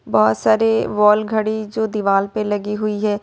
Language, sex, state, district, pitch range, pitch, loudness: Hindi, female, Jharkhand, Ranchi, 195-215 Hz, 210 Hz, -18 LUFS